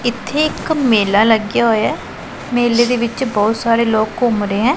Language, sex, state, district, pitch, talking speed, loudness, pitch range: Punjabi, female, Punjab, Pathankot, 235 Hz, 190 wpm, -15 LUFS, 220-245 Hz